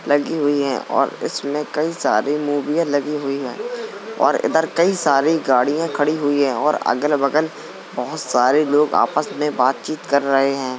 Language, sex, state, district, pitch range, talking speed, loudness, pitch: Hindi, male, Uttar Pradesh, Jalaun, 140-155 Hz, 180 wpm, -19 LUFS, 145 Hz